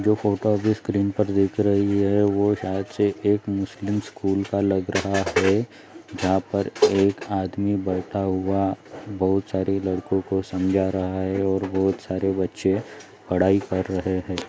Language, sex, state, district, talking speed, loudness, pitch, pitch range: Hindi, male, Maharashtra, Chandrapur, 160 wpm, -23 LUFS, 95 Hz, 95-100 Hz